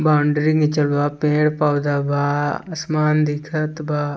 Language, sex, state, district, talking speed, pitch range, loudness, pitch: Bhojpuri, male, Bihar, East Champaran, 115 wpm, 145-155 Hz, -19 LUFS, 150 Hz